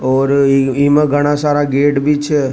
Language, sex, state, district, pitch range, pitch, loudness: Rajasthani, male, Rajasthan, Nagaur, 135-145 Hz, 145 Hz, -13 LUFS